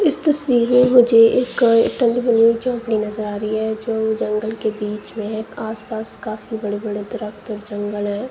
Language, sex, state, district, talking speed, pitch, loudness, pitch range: Hindi, female, Punjab, Kapurthala, 150 wpm, 220 Hz, -19 LUFS, 215-235 Hz